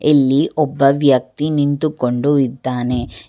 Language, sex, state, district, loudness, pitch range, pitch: Kannada, female, Karnataka, Bangalore, -16 LUFS, 125-145 Hz, 140 Hz